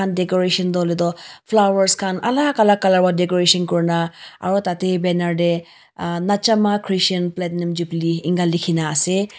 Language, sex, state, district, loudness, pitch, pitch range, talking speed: Nagamese, female, Nagaland, Kohima, -18 LUFS, 180 Hz, 170-195 Hz, 155 wpm